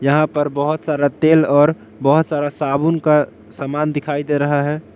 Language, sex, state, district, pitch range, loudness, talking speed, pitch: Hindi, male, Jharkhand, Palamu, 145-155 Hz, -17 LUFS, 180 wpm, 145 Hz